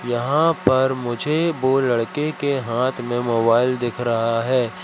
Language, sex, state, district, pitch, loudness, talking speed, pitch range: Hindi, male, Madhya Pradesh, Katni, 125 Hz, -20 LUFS, 150 wpm, 120-140 Hz